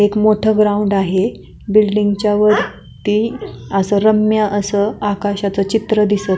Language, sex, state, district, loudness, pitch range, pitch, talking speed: Marathi, female, Maharashtra, Pune, -15 LUFS, 200-215 Hz, 205 Hz, 120 wpm